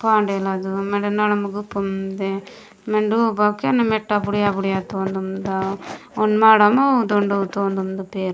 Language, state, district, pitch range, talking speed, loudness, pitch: Gondi, Chhattisgarh, Sukma, 195-215 Hz, 150 wpm, -20 LUFS, 205 Hz